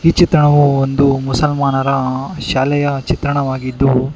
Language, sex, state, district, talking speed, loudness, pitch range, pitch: Kannada, male, Karnataka, Bangalore, 85 wpm, -14 LUFS, 135-145 Hz, 140 Hz